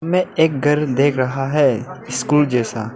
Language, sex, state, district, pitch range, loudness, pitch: Hindi, male, Arunachal Pradesh, Lower Dibang Valley, 130-150 Hz, -18 LUFS, 145 Hz